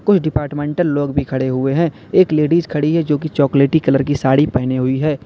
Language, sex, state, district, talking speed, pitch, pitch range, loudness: Hindi, male, Uttar Pradesh, Lalitpur, 215 wpm, 145 Hz, 135-155 Hz, -16 LUFS